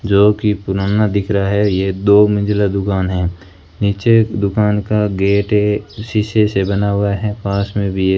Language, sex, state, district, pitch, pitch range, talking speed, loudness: Hindi, male, Rajasthan, Bikaner, 100 Hz, 100-105 Hz, 175 wpm, -15 LUFS